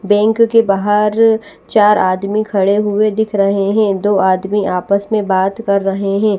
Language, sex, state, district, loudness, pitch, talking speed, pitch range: Hindi, male, Odisha, Nuapada, -14 LUFS, 205 Hz, 170 wpm, 195-215 Hz